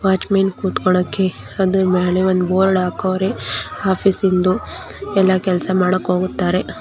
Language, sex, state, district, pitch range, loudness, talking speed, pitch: Kannada, female, Karnataka, Belgaum, 180-190 Hz, -17 LUFS, 125 wpm, 185 Hz